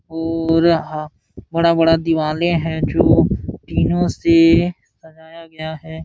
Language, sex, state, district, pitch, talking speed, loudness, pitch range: Hindi, male, Uttar Pradesh, Jalaun, 160 Hz, 110 wpm, -16 LUFS, 155-165 Hz